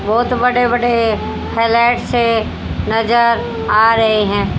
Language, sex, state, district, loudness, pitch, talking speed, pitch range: Hindi, female, Haryana, Jhajjar, -14 LUFS, 230 Hz, 115 wpm, 220-240 Hz